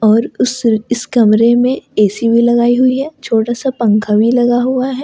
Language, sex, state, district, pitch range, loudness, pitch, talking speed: Hindi, female, Jharkhand, Ranchi, 225-255 Hz, -13 LUFS, 240 Hz, 215 wpm